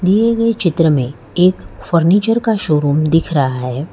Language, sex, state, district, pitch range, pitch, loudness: Hindi, male, Gujarat, Valsad, 145-200 Hz, 165 Hz, -15 LUFS